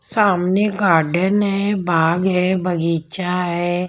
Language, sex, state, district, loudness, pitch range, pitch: Hindi, female, Bihar, Patna, -18 LUFS, 170-195 Hz, 180 Hz